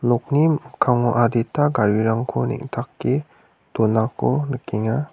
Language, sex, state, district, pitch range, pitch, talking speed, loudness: Garo, male, Meghalaya, West Garo Hills, 110-140 Hz, 120 Hz, 80 wpm, -21 LUFS